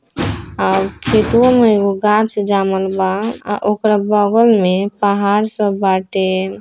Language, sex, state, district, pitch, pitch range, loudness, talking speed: Hindi, female, Bihar, East Champaran, 205 Hz, 190-210 Hz, -15 LUFS, 100 wpm